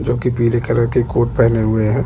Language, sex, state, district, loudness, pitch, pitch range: Hindi, male, Chhattisgarh, Jashpur, -16 LUFS, 120 Hz, 115-120 Hz